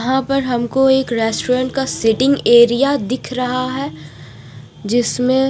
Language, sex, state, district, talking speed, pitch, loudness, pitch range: Hindi, female, Punjab, Fazilka, 130 wpm, 250 Hz, -16 LUFS, 225-265 Hz